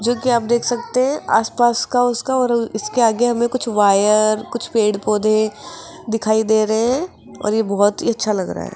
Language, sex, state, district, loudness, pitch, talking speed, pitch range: Hindi, female, Rajasthan, Jaipur, -17 LUFS, 230 Hz, 210 wpm, 215-245 Hz